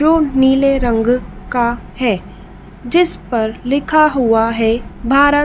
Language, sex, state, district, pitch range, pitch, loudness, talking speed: Hindi, female, Madhya Pradesh, Dhar, 225-280 Hz, 245 Hz, -15 LUFS, 120 wpm